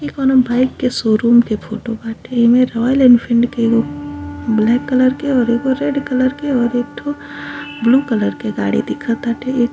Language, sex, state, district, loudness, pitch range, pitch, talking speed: Bhojpuri, female, Uttar Pradesh, Gorakhpur, -15 LUFS, 230-260 Hz, 240 Hz, 180 wpm